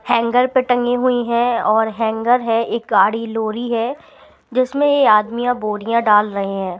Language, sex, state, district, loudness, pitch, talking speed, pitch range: Hindi, female, Bihar, Patna, -17 LUFS, 230 Hz, 160 wpm, 220-245 Hz